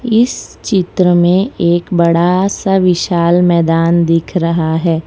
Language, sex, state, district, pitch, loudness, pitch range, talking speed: Hindi, female, Gujarat, Valsad, 175 Hz, -12 LUFS, 170-185 Hz, 130 wpm